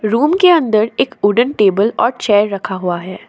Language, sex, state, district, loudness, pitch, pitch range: Hindi, female, Assam, Sonitpur, -14 LUFS, 215 Hz, 200-240 Hz